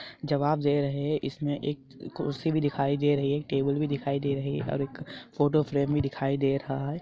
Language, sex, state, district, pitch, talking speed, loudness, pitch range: Hindi, male, Andhra Pradesh, Anantapur, 145 Hz, 220 wpm, -28 LUFS, 140-145 Hz